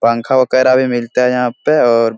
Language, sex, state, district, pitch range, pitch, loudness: Hindi, male, Bihar, Supaul, 115-130 Hz, 125 Hz, -13 LUFS